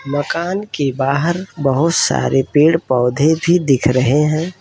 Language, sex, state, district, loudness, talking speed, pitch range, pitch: Hindi, male, Uttar Pradesh, Etah, -15 LUFS, 145 wpm, 135-170 Hz, 150 Hz